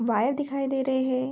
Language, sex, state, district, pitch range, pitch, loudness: Hindi, female, Bihar, Begusarai, 255-270 Hz, 265 Hz, -26 LUFS